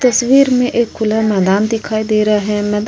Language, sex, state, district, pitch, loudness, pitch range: Hindi, female, Uttar Pradesh, Etah, 220 Hz, -14 LUFS, 210-240 Hz